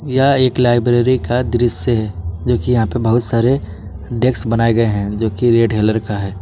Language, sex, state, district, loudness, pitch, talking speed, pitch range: Hindi, male, Jharkhand, Ranchi, -15 LUFS, 115 Hz, 205 wpm, 105-120 Hz